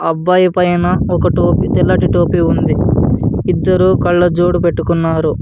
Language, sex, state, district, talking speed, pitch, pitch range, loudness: Telugu, male, Andhra Pradesh, Anantapur, 120 wpm, 175 Hz, 165-180 Hz, -13 LUFS